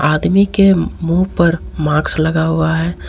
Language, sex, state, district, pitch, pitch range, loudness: Hindi, male, Jharkhand, Ranchi, 165 Hz, 160-185 Hz, -14 LUFS